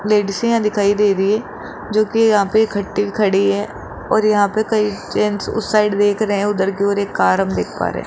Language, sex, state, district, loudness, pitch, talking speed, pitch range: Hindi, male, Rajasthan, Jaipur, -17 LUFS, 205 Hz, 245 wpm, 200-215 Hz